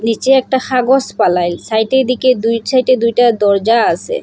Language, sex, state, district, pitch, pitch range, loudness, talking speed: Bengali, female, Assam, Hailakandi, 245 Hz, 225-260 Hz, -13 LUFS, 155 wpm